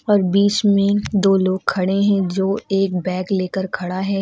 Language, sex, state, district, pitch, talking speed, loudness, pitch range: Hindi, female, Uttar Pradesh, Lucknow, 195 Hz, 185 wpm, -18 LUFS, 185-200 Hz